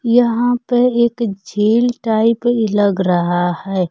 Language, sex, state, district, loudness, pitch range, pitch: Hindi, female, Bihar, Kaimur, -16 LUFS, 195-240 Hz, 225 Hz